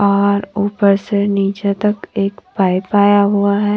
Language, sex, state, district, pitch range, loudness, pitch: Hindi, female, Haryana, Charkhi Dadri, 200-205 Hz, -15 LUFS, 200 Hz